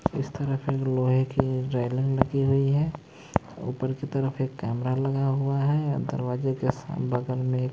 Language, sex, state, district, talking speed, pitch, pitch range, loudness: Hindi, male, Maharashtra, Mumbai Suburban, 165 wpm, 135 Hz, 130-140 Hz, -27 LUFS